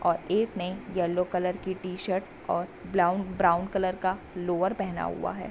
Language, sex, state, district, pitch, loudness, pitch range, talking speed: Hindi, female, Bihar, Bhagalpur, 185 Hz, -29 LUFS, 180-190 Hz, 165 wpm